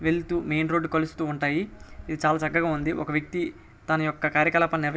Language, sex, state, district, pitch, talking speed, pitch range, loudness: Telugu, male, Andhra Pradesh, Srikakulam, 160 Hz, 180 wpm, 155-165 Hz, -26 LUFS